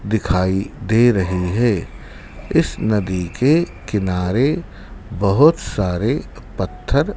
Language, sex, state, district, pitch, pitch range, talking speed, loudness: Hindi, male, Madhya Pradesh, Dhar, 100 Hz, 90-115 Hz, 90 wpm, -18 LUFS